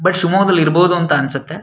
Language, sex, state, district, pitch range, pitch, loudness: Kannada, male, Karnataka, Shimoga, 155-180 Hz, 175 Hz, -14 LUFS